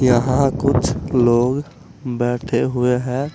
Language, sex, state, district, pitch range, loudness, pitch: Hindi, male, Uttar Pradesh, Saharanpur, 120-135 Hz, -18 LUFS, 125 Hz